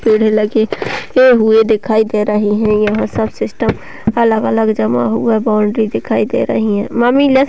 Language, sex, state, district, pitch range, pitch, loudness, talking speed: Hindi, female, Uttar Pradesh, Hamirpur, 210-225 Hz, 220 Hz, -13 LUFS, 170 wpm